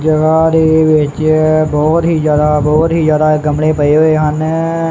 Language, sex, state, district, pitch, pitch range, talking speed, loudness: Punjabi, male, Punjab, Kapurthala, 155 Hz, 150-160 Hz, 160 wpm, -11 LUFS